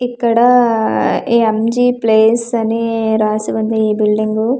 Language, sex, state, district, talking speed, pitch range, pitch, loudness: Telugu, female, Andhra Pradesh, Manyam, 115 wpm, 215-235 Hz, 225 Hz, -14 LUFS